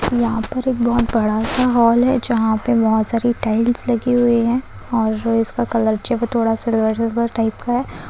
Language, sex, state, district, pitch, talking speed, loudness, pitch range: Hindi, female, Chhattisgarh, Raigarh, 235 Hz, 180 wpm, -18 LUFS, 225-240 Hz